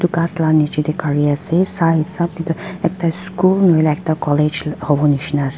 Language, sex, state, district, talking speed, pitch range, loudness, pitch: Nagamese, female, Nagaland, Dimapur, 215 wpm, 150-170 Hz, -16 LUFS, 160 Hz